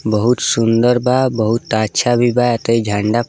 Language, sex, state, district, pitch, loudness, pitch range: Bhojpuri, male, Bihar, East Champaran, 115 Hz, -15 LUFS, 110-120 Hz